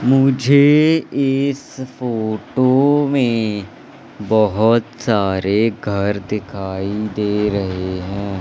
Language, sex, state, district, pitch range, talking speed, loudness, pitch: Hindi, male, Madhya Pradesh, Katni, 100-130 Hz, 80 wpm, -17 LUFS, 110 Hz